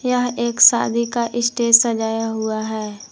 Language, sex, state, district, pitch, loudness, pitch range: Hindi, female, Jharkhand, Garhwa, 235 Hz, -17 LUFS, 220-240 Hz